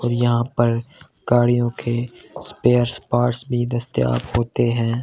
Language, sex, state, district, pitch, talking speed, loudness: Hindi, male, Delhi, New Delhi, 120 Hz, 130 wpm, -20 LUFS